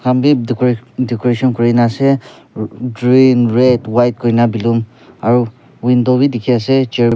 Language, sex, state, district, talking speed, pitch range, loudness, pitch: Nagamese, male, Nagaland, Kohima, 150 wpm, 120-125 Hz, -14 LUFS, 125 Hz